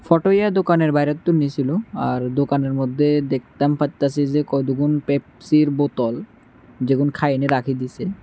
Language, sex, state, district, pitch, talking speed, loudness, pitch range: Bengali, male, Tripura, West Tripura, 145 Hz, 130 wpm, -20 LUFS, 135-150 Hz